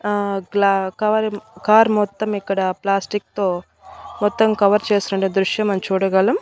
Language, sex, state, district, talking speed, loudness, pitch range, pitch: Telugu, female, Andhra Pradesh, Annamaya, 140 wpm, -19 LUFS, 195-215 Hz, 200 Hz